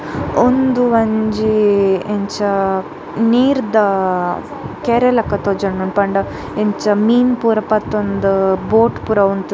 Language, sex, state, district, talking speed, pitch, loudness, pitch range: Tulu, female, Karnataka, Dakshina Kannada, 95 wpm, 210 Hz, -15 LUFS, 195-225 Hz